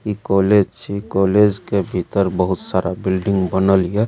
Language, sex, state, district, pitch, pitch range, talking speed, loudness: Maithili, male, Bihar, Supaul, 95 Hz, 95-100 Hz, 160 wpm, -18 LUFS